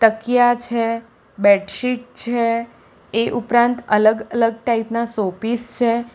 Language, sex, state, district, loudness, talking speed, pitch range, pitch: Gujarati, female, Gujarat, Valsad, -19 LUFS, 125 wpm, 225-240 Hz, 230 Hz